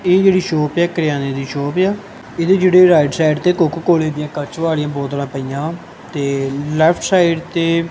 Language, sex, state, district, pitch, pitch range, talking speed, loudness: Punjabi, male, Punjab, Kapurthala, 160 Hz, 145-175 Hz, 190 wpm, -16 LUFS